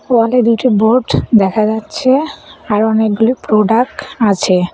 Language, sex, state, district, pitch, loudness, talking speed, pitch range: Bengali, female, West Bengal, Cooch Behar, 225 Hz, -13 LUFS, 115 wpm, 215-250 Hz